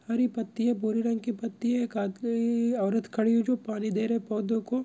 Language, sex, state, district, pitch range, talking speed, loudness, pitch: Hindi, male, Bihar, Bhagalpur, 220-235 Hz, 245 wpm, -28 LUFS, 230 Hz